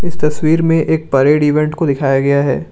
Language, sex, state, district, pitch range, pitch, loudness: Hindi, male, Assam, Kamrup Metropolitan, 140-160 Hz, 150 Hz, -14 LUFS